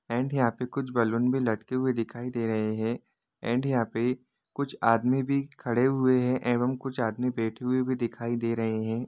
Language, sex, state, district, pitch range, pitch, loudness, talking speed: Hindi, male, Jharkhand, Jamtara, 115-130 Hz, 125 Hz, -28 LUFS, 200 wpm